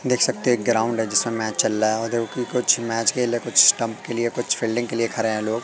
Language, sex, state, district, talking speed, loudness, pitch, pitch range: Hindi, male, Madhya Pradesh, Katni, 300 wpm, -21 LUFS, 115 Hz, 110-120 Hz